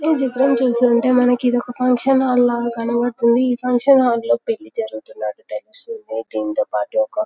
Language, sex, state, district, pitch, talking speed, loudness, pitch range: Telugu, female, Telangana, Karimnagar, 245 Hz, 180 wpm, -18 LUFS, 220-255 Hz